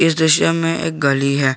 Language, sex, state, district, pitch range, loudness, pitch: Hindi, male, Jharkhand, Garhwa, 140-165 Hz, -16 LUFS, 160 Hz